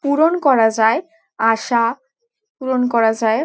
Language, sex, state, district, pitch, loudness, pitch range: Bengali, female, West Bengal, Kolkata, 255 Hz, -16 LUFS, 225-320 Hz